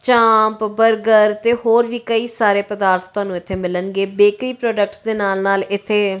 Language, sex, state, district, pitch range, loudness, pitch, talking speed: Punjabi, female, Punjab, Kapurthala, 195-225 Hz, -16 LUFS, 210 Hz, 165 wpm